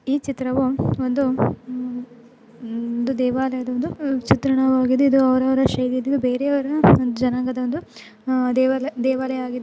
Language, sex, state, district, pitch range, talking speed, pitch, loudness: Kannada, female, Karnataka, Dakshina Kannada, 250-265 Hz, 85 wpm, 255 Hz, -20 LUFS